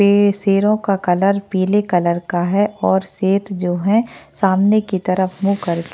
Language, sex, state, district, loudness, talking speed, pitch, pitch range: Hindi, female, Maharashtra, Chandrapur, -17 LUFS, 180 wpm, 195 Hz, 185-205 Hz